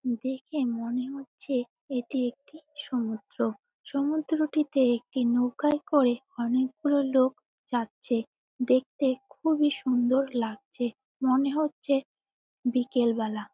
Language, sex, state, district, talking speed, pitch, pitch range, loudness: Bengali, female, West Bengal, Jalpaiguri, 95 wpm, 260 Hz, 245-285 Hz, -28 LUFS